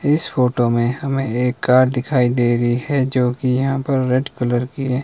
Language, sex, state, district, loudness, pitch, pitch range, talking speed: Hindi, male, Himachal Pradesh, Shimla, -18 LUFS, 125 Hz, 125-135 Hz, 200 wpm